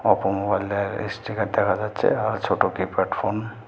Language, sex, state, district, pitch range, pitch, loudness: Bengali, male, West Bengal, Cooch Behar, 95-105 Hz, 100 Hz, -24 LUFS